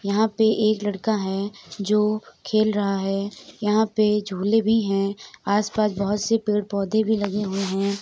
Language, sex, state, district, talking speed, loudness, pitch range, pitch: Hindi, female, Uttar Pradesh, Etah, 170 wpm, -23 LUFS, 200-215 Hz, 210 Hz